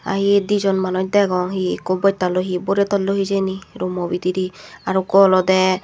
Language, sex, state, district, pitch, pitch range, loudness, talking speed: Chakma, female, Tripura, Dhalai, 190 Hz, 185-195 Hz, -18 LUFS, 165 wpm